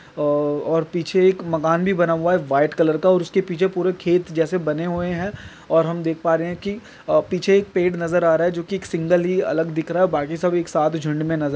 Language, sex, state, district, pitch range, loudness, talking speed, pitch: Hindi, male, Chhattisgarh, Bilaspur, 160-180 Hz, -20 LUFS, 270 wpm, 170 Hz